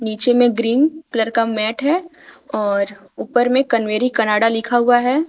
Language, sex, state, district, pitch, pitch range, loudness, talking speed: Hindi, female, Jharkhand, Garhwa, 235 Hz, 220-250 Hz, -17 LUFS, 170 wpm